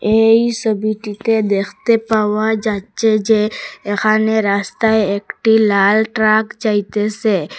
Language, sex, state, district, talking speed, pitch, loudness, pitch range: Bengali, female, Assam, Hailakandi, 95 wpm, 215 Hz, -15 LUFS, 205-220 Hz